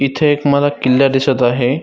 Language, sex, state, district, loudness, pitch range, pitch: Marathi, male, Maharashtra, Dhule, -14 LUFS, 130-145 Hz, 135 Hz